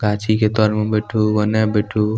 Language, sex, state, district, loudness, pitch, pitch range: Maithili, male, Bihar, Madhepura, -18 LUFS, 110 Hz, 105-110 Hz